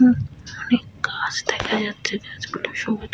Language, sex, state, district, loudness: Bengali, female, West Bengal, Jhargram, -24 LUFS